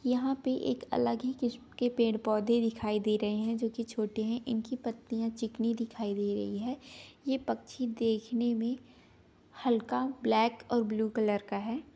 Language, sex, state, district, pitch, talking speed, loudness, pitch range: Hindi, female, Chhattisgarh, Sarguja, 230 Hz, 175 wpm, -32 LUFS, 220-245 Hz